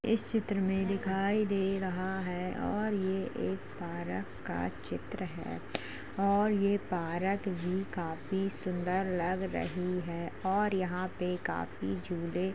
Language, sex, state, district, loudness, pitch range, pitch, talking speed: Hindi, female, Uttar Pradesh, Jalaun, -34 LUFS, 170-195 Hz, 185 Hz, 140 wpm